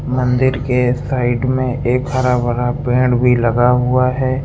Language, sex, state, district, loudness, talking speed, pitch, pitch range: Hindi, male, Uttar Pradesh, Lucknow, -15 LUFS, 160 wpm, 125 Hz, 125-130 Hz